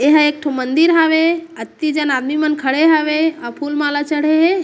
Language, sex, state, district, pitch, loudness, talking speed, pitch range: Chhattisgarhi, female, Chhattisgarh, Korba, 305 Hz, -15 LUFS, 220 wpm, 290-320 Hz